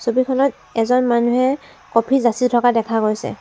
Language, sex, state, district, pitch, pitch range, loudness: Assamese, female, Assam, Sonitpur, 240 Hz, 230-255 Hz, -18 LUFS